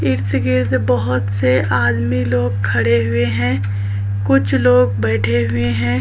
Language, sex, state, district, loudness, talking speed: Hindi, female, Chhattisgarh, Balrampur, -16 LUFS, 140 wpm